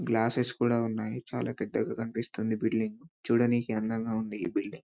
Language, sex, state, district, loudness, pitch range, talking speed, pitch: Telugu, male, Telangana, Karimnagar, -31 LUFS, 110-120 Hz, 175 wpm, 115 Hz